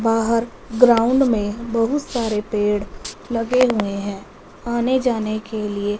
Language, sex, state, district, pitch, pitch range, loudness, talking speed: Hindi, female, Punjab, Fazilka, 225 Hz, 210-240 Hz, -20 LUFS, 130 wpm